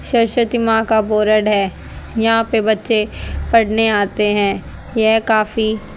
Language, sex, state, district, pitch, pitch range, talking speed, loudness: Hindi, female, Haryana, Rohtak, 220 Hz, 215-225 Hz, 130 wpm, -16 LUFS